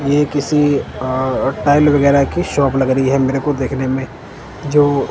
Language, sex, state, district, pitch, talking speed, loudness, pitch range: Hindi, male, Punjab, Kapurthala, 140 Hz, 165 wpm, -15 LUFS, 130-145 Hz